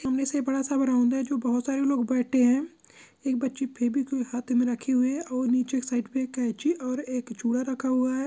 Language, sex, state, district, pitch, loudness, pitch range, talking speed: Hindi, male, Andhra Pradesh, Guntur, 260 Hz, -27 LUFS, 245-270 Hz, 230 wpm